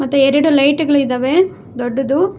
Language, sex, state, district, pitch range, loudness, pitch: Kannada, female, Karnataka, Bangalore, 270-305 Hz, -14 LUFS, 280 Hz